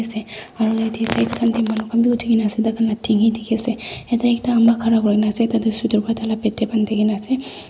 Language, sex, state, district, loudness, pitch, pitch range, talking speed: Nagamese, female, Nagaland, Dimapur, -19 LUFS, 225 Hz, 220-230 Hz, 280 wpm